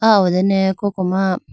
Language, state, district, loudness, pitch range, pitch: Idu Mishmi, Arunachal Pradesh, Lower Dibang Valley, -17 LUFS, 185-200 Hz, 190 Hz